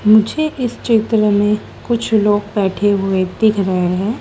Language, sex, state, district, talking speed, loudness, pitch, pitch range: Hindi, female, Madhya Pradesh, Dhar, 155 wpm, -16 LUFS, 210 Hz, 200-225 Hz